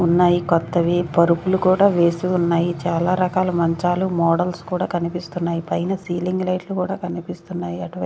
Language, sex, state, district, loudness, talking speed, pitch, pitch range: Telugu, female, Andhra Pradesh, Sri Satya Sai, -20 LUFS, 135 wpm, 175 Hz, 170-185 Hz